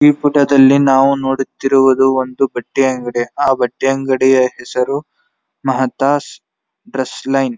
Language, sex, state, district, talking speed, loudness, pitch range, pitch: Kannada, male, Karnataka, Dharwad, 125 wpm, -14 LUFS, 130-135 Hz, 135 Hz